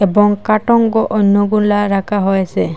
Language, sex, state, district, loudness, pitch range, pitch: Bengali, female, Assam, Hailakandi, -13 LUFS, 200-215 Hz, 205 Hz